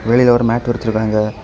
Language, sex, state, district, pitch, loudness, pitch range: Tamil, male, Tamil Nadu, Kanyakumari, 115 Hz, -15 LUFS, 110-120 Hz